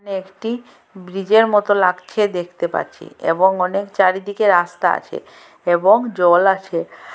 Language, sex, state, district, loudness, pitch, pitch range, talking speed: Bengali, female, Assam, Hailakandi, -17 LUFS, 190 Hz, 180-205 Hz, 115 wpm